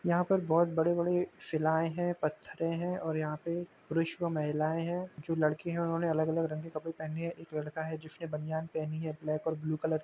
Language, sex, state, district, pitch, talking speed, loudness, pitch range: Hindi, male, Uttar Pradesh, Jalaun, 160 Hz, 220 wpm, -33 LUFS, 155-170 Hz